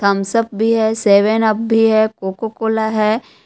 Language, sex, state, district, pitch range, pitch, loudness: Hindi, female, Jharkhand, Palamu, 215-225 Hz, 220 Hz, -15 LUFS